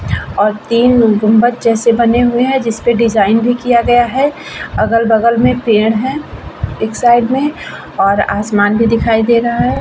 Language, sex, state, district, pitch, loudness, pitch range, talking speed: Hindi, female, Bihar, Vaishali, 235 Hz, -12 LUFS, 220-245 Hz, 170 wpm